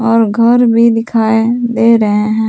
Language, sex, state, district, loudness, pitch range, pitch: Hindi, female, Jharkhand, Palamu, -11 LUFS, 220-235 Hz, 230 Hz